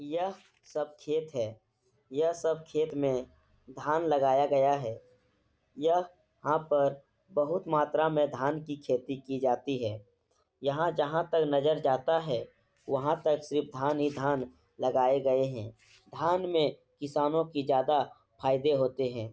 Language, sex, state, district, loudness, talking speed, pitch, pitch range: Hindi, male, Uttar Pradesh, Etah, -30 LUFS, 145 wpm, 145 Hz, 130-155 Hz